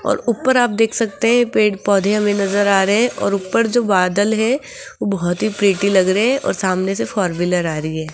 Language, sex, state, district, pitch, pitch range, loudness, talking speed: Hindi, female, Rajasthan, Jaipur, 200 Hz, 190-225 Hz, -17 LUFS, 220 wpm